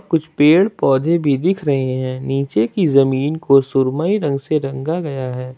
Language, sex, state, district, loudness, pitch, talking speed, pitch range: Hindi, male, Jharkhand, Ranchi, -17 LUFS, 140 Hz, 180 wpm, 135-160 Hz